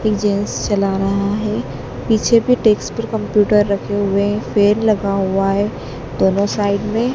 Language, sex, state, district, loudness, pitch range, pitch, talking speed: Hindi, female, Madhya Pradesh, Dhar, -17 LUFS, 195-210 Hz, 205 Hz, 150 wpm